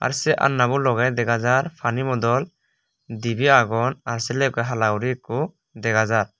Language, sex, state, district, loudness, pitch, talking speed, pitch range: Chakma, male, Tripura, West Tripura, -21 LUFS, 125 Hz, 180 wpm, 115-135 Hz